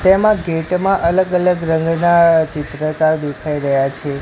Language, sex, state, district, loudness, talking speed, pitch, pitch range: Gujarati, male, Gujarat, Gandhinagar, -16 LUFS, 140 wpm, 165 Hz, 150-180 Hz